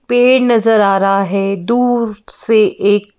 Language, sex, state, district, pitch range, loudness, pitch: Hindi, female, Madhya Pradesh, Bhopal, 195-240 Hz, -13 LUFS, 215 Hz